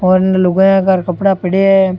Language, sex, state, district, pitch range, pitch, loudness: Rajasthani, male, Rajasthan, Churu, 185-195 Hz, 190 Hz, -12 LUFS